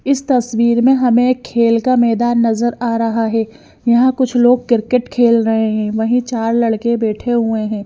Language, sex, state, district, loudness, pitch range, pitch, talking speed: Hindi, female, Haryana, Jhajjar, -14 LUFS, 225-245 Hz, 235 Hz, 190 wpm